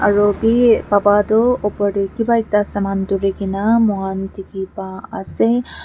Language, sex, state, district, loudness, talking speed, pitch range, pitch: Nagamese, female, Nagaland, Kohima, -17 LUFS, 165 wpm, 195-225 Hz, 205 Hz